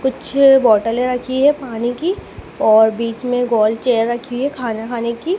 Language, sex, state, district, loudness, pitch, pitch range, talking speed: Hindi, female, Madhya Pradesh, Dhar, -16 LUFS, 245 Hz, 230-265 Hz, 180 wpm